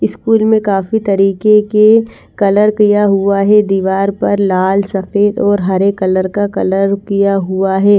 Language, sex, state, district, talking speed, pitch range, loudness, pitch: Hindi, female, Chandigarh, Chandigarh, 160 wpm, 195-210 Hz, -12 LUFS, 200 Hz